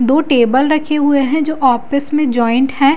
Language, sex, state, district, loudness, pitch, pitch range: Hindi, female, Delhi, New Delhi, -14 LUFS, 280 Hz, 255-300 Hz